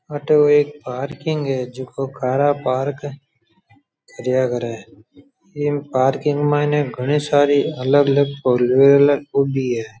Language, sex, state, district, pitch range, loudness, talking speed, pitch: Rajasthani, male, Rajasthan, Churu, 130-145 Hz, -18 LUFS, 120 wpm, 140 Hz